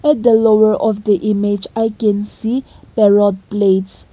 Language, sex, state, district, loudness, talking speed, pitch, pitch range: English, female, Nagaland, Kohima, -15 LUFS, 145 wpm, 210 Hz, 205-225 Hz